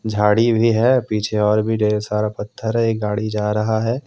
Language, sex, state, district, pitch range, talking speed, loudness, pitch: Hindi, male, Jharkhand, Deoghar, 105-115 Hz, 220 wpm, -18 LUFS, 110 Hz